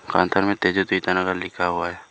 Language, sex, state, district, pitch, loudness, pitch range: Hindi, male, Arunachal Pradesh, Lower Dibang Valley, 90 Hz, -22 LUFS, 90-95 Hz